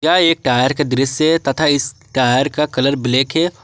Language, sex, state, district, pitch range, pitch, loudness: Hindi, male, Jharkhand, Garhwa, 130-155 Hz, 140 Hz, -16 LUFS